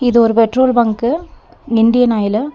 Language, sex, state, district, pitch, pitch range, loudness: Tamil, female, Tamil Nadu, Nilgiris, 235 Hz, 225-245 Hz, -13 LUFS